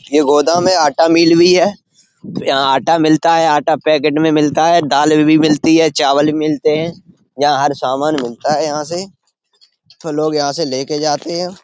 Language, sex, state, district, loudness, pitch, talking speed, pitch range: Hindi, male, Uttar Pradesh, Etah, -13 LUFS, 155 Hz, 200 wpm, 150-170 Hz